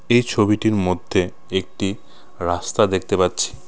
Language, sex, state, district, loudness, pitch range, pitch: Bengali, male, West Bengal, Cooch Behar, -20 LUFS, 95-110 Hz, 105 Hz